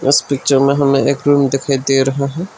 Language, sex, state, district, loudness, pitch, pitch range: Hindi, male, Arunachal Pradesh, Lower Dibang Valley, -14 LUFS, 140 Hz, 135-140 Hz